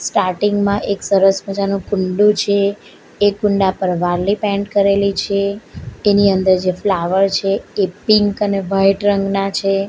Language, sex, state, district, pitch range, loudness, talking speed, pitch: Gujarati, female, Gujarat, Valsad, 195-205 Hz, -16 LUFS, 150 wpm, 200 Hz